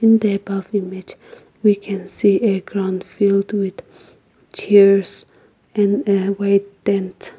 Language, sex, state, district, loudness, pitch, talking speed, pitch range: English, female, Nagaland, Kohima, -18 LUFS, 200 Hz, 130 wpm, 195-205 Hz